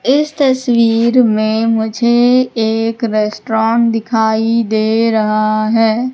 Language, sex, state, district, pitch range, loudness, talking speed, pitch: Hindi, female, Madhya Pradesh, Katni, 220-235 Hz, -13 LUFS, 100 wpm, 225 Hz